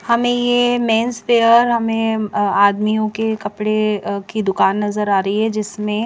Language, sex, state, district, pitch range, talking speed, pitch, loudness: Hindi, female, Chandigarh, Chandigarh, 205-230 Hz, 160 wpm, 215 Hz, -17 LUFS